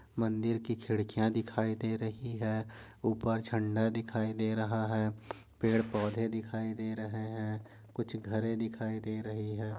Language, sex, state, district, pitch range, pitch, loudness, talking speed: Hindi, male, Goa, North and South Goa, 110-115 Hz, 110 Hz, -35 LUFS, 155 wpm